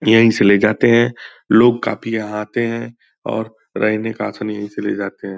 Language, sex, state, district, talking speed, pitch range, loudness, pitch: Hindi, male, Bihar, Purnia, 210 wpm, 105-115 Hz, -17 LUFS, 110 Hz